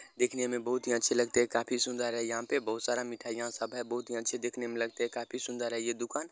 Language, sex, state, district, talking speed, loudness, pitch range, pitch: Hindi, male, Bihar, Sitamarhi, 275 wpm, -33 LUFS, 115-125 Hz, 120 Hz